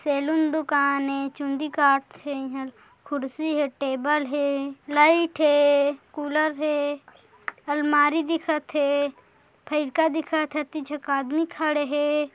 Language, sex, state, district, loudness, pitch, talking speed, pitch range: Hindi, female, Chhattisgarh, Korba, -24 LUFS, 295 Hz, 125 wpm, 280-305 Hz